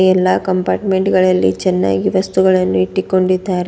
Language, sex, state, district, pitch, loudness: Kannada, female, Karnataka, Bidar, 185 Hz, -14 LUFS